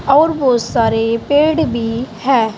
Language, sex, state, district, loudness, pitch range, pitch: Hindi, female, Uttar Pradesh, Saharanpur, -15 LUFS, 230-285 Hz, 245 Hz